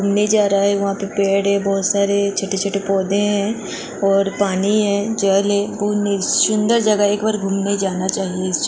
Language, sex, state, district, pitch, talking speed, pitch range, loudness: Hindi, female, Goa, North and South Goa, 200 Hz, 170 wpm, 195-205 Hz, -18 LUFS